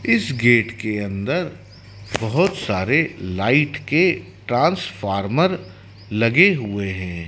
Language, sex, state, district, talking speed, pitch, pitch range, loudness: Hindi, male, Madhya Pradesh, Dhar, 100 wpm, 110 Hz, 100-150 Hz, -19 LUFS